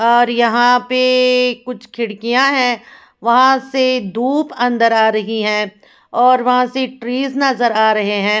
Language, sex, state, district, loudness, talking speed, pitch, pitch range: Hindi, female, Bihar, Patna, -14 LUFS, 170 wpm, 245 Hz, 225-255 Hz